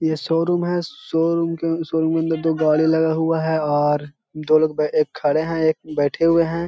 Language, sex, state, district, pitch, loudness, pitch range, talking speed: Hindi, male, Bihar, Jahanabad, 160 Hz, -20 LUFS, 155-165 Hz, 215 wpm